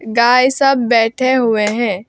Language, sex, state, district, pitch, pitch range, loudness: Hindi, female, West Bengal, Alipurduar, 235 Hz, 225-255 Hz, -13 LUFS